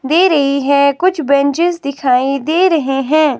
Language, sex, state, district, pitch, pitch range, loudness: Hindi, female, Himachal Pradesh, Shimla, 285 Hz, 275-330 Hz, -13 LUFS